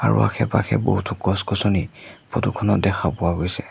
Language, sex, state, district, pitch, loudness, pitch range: Assamese, male, Assam, Sonitpur, 100 Hz, -21 LUFS, 95-120 Hz